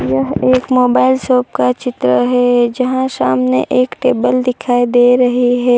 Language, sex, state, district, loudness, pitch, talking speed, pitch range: Hindi, female, Gujarat, Valsad, -13 LUFS, 250 Hz, 155 wpm, 245-255 Hz